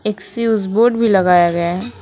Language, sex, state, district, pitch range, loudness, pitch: Hindi, female, West Bengal, Alipurduar, 180-230 Hz, -15 LUFS, 205 Hz